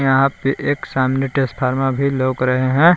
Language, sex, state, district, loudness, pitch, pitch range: Hindi, male, Jharkhand, Palamu, -18 LUFS, 135 Hz, 130-140 Hz